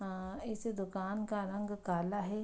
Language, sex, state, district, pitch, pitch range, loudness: Hindi, female, Bihar, Araria, 205 Hz, 190-210 Hz, -39 LUFS